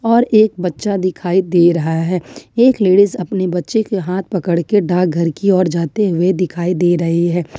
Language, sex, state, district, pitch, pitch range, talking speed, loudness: Hindi, female, Jharkhand, Ranchi, 180 Hz, 175-200 Hz, 190 wpm, -15 LUFS